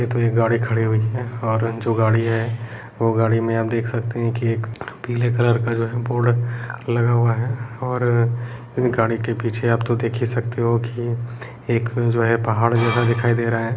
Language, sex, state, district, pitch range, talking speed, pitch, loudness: Kumaoni, male, Uttarakhand, Uttarkashi, 115-120 Hz, 220 wpm, 115 Hz, -20 LUFS